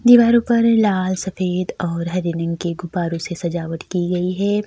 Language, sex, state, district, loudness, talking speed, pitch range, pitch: Hindi, female, Bihar, Kishanganj, -19 LUFS, 180 wpm, 170-205 Hz, 180 Hz